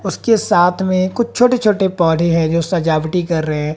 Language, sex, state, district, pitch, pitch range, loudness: Hindi, female, Haryana, Jhajjar, 180 Hz, 165-210 Hz, -15 LUFS